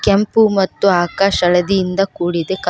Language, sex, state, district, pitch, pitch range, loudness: Kannada, female, Karnataka, Koppal, 195 Hz, 180-200 Hz, -15 LUFS